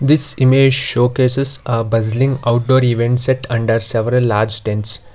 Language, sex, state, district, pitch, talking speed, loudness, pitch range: English, male, Karnataka, Bangalore, 120 Hz, 140 wpm, -15 LUFS, 115-130 Hz